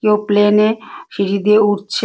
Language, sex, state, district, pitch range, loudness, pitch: Bengali, female, West Bengal, Malda, 205-215 Hz, -14 LUFS, 210 Hz